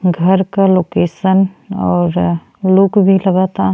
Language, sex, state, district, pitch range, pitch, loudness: Bhojpuri, female, Uttar Pradesh, Ghazipur, 145-195 Hz, 185 Hz, -13 LUFS